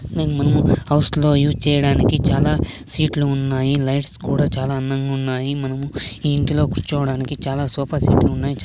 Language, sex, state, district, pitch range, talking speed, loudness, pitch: Telugu, male, Andhra Pradesh, Sri Satya Sai, 135-145 Hz, 175 wpm, -19 LUFS, 140 Hz